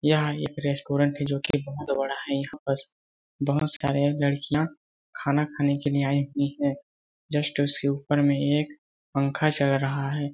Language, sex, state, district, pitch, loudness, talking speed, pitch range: Hindi, male, Chhattisgarh, Balrampur, 140 Hz, -26 LUFS, 180 wpm, 140-145 Hz